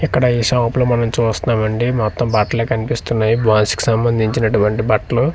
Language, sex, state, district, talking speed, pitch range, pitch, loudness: Telugu, male, Andhra Pradesh, Manyam, 170 wpm, 110-120 Hz, 115 Hz, -16 LUFS